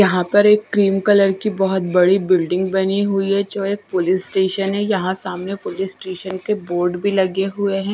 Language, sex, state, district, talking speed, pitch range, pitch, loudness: Hindi, female, Bihar, West Champaran, 205 wpm, 185-200 Hz, 195 Hz, -18 LUFS